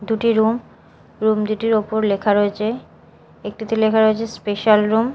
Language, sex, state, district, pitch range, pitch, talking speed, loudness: Bengali, female, Odisha, Malkangiri, 210-225 Hz, 220 Hz, 150 wpm, -18 LUFS